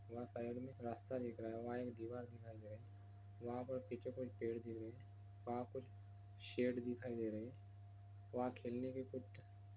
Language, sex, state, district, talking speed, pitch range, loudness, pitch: Hindi, male, Bihar, Purnia, 210 wpm, 100-125 Hz, -48 LUFS, 115 Hz